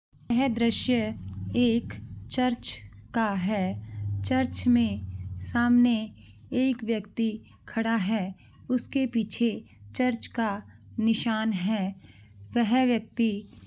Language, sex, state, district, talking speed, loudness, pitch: Hindi, female, Maharashtra, Nagpur, 90 wpm, -28 LUFS, 215 Hz